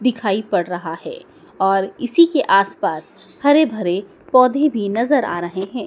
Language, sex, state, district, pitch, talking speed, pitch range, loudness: Hindi, male, Madhya Pradesh, Dhar, 205 Hz, 175 wpm, 190-255 Hz, -18 LUFS